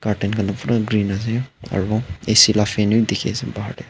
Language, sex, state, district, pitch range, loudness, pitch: Nagamese, male, Nagaland, Dimapur, 100-115 Hz, -19 LUFS, 105 Hz